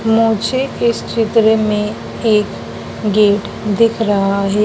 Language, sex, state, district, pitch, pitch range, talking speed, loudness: Hindi, female, Madhya Pradesh, Dhar, 215 Hz, 210-225 Hz, 115 wpm, -15 LUFS